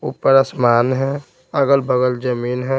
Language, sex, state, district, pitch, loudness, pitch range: Hindi, male, Bihar, Patna, 130 Hz, -17 LUFS, 125-135 Hz